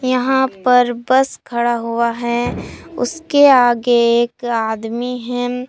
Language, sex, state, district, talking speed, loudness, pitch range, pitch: Hindi, female, Jharkhand, Palamu, 115 wpm, -16 LUFS, 235-255 Hz, 245 Hz